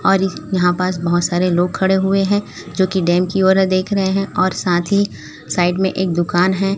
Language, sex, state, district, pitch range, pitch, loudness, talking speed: Hindi, female, Chhattisgarh, Raipur, 175-195 Hz, 185 Hz, -17 LUFS, 230 wpm